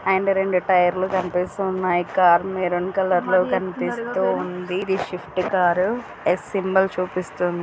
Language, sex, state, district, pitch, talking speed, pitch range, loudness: Telugu, female, Andhra Pradesh, Srikakulam, 185 Hz, 150 wpm, 180-190 Hz, -21 LUFS